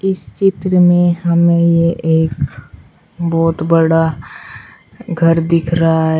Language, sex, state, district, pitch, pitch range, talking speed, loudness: Hindi, female, Uttar Pradesh, Shamli, 165 Hz, 160-170 Hz, 115 wpm, -14 LUFS